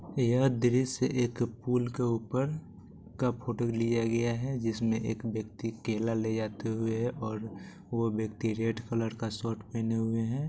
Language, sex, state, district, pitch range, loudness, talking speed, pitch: Maithili, male, Bihar, Supaul, 110-125 Hz, -31 LUFS, 160 wpm, 115 Hz